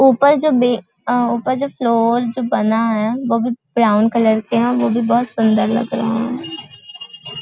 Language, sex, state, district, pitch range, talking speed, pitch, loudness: Hindi, female, Chhattisgarh, Balrampur, 220-245 Hz, 180 wpm, 230 Hz, -16 LUFS